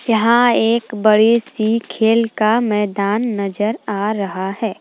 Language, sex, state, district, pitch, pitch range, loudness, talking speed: Hindi, female, Jharkhand, Palamu, 220 Hz, 210-230 Hz, -16 LUFS, 135 wpm